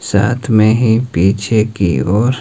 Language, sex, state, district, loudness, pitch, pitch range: Hindi, male, Himachal Pradesh, Shimla, -13 LUFS, 110 Hz, 100-115 Hz